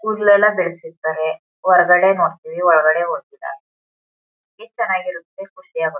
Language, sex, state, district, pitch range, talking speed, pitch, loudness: Kannada, female, Karnataka, Mysore, 170-220 Hz, 80 wpm, 190 Hz, -17 LUFS